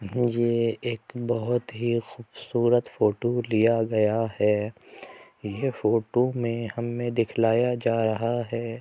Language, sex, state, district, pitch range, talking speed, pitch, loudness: Hindi, male, Uttar Pradesh, Jyotiba Phule Nagar, 115-120 Hz, 115 wpm, 115 Hz, -25 LUFS